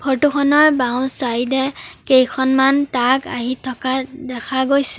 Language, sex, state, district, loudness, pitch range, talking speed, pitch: Assamese, female, Assam, Sonitpur, -17 LUFS, 255-275 Hz, 130 wpm, 265 Hz